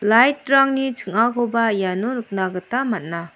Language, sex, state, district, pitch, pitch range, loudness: Garo, female, Meghalaya, South Garo Hills, 230 Hz, 190-255 Hz, -20 LUFS